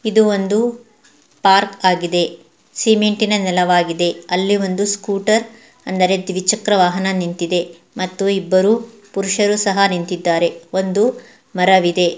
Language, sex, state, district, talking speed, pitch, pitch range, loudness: Kannada, female, Karnataka, Mysore, 105 wpm, 195 Hz, 180-210 Hz, -16 LUFS